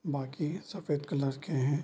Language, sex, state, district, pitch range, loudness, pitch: Hindi, male, Bihar, Darbhanga, 140-155 Hz, -34 LUFS, 145 Hz